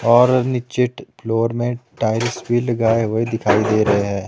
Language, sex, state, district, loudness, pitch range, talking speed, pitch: Hindi, male, Himachal Pradesh, Shimla, -18 LUFS, 110-120 Hz, 170 wpm, 115 Hz